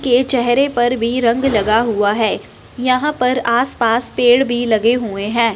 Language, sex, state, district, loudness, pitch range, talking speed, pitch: Hindi, female, Punjab, Fazilka, -15 LUFS, 230-250 Hz, 185 wpm, 240 Hz